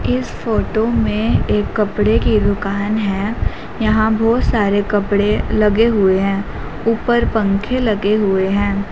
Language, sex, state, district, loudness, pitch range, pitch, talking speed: Hindi, female, Haryana, Jhajjar, -16 LUFS, 200-220 Hz, 205 Hz, 135 wpm